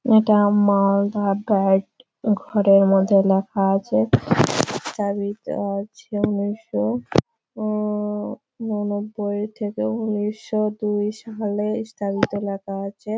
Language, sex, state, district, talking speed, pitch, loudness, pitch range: Bengali, female, West Bengal, Malda, 85 wpm, 205 Hz, -21 LUFS, 195-210 Hz